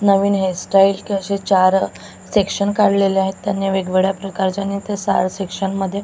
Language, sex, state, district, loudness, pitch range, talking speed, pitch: Marathi, female, Maharashtra, Gondia, -18 LUFS, 190-200 Hz, 160 wpm, 195 Hz